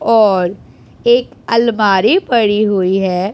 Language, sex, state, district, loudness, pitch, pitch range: Hindi, female, Punjab, Pathankot, -13 LUFS, 210 Hz, 190-235 Hz